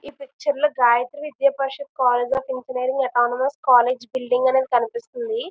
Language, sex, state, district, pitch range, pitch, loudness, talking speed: Telugu, female, Andhra Pradesh, Visakhapatnam, 250-280 Hz, 265 Hz, -21 LUFS, 150 wpm